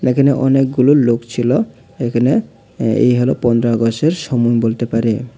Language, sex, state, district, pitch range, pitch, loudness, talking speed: Bengali, male, Tripura, Unakoti, 115-135 Hz, 120 Hz, -15 LUFS, 135 wpm